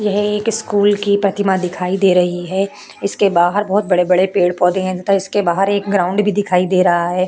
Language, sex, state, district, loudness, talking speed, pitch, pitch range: Hindi, female, Maharashtra, Aurangabad, -16 LUFS, 220 wpm, 195 Hz, 180-205 Hz